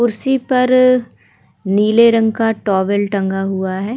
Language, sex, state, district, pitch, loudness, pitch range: Hindi, female, Uttar Pradesh, Hamirpur, 220 Hz, -15 LUFS, 195-245 Hz